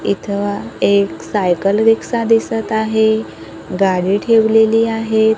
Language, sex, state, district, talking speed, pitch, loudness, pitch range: Marathi, female, Maharashtra, Gondia, 100 wpm, 220 Hz, -15 LUFS, 195-225 Hz